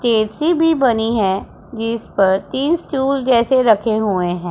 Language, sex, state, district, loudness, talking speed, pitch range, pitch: Hindi, female, Punjab, Pathankot, -17 LUFS, 145 wpm, 210-265 Hz, 230 Hz